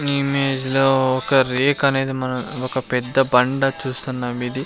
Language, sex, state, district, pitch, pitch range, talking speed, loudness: Telugu, male, Andhra Pradesh, Sri Satya Sai, 130 Hz, 130-135 Hz, 180 wpm, -19 LUFS